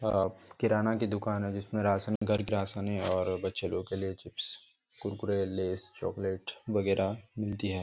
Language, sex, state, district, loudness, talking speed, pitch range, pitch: Hindi, male, Jharkhand, Jamtara, -33 LUFS, 160 wpm, 95-105 Hz, 100 Hz